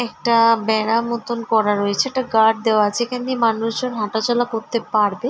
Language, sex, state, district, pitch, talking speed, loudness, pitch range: Bengali, female, West Bengal, Jalpaiguri, 230 Hz, 190 wpm, -19 LUFS, 220-240 Hz